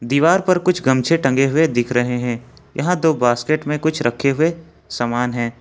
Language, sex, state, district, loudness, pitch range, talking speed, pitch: Hindi, male, Jharkhand, Ranchi, -18 LUFS, 120-160 Hz, 190 wpm, 135 Hz